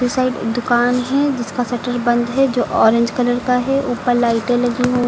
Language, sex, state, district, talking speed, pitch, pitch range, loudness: Hindi, female, Uttar Pradesh, Lucknow, 200 wpm, 245 Hz, 240-250 Hz, -17 LUFS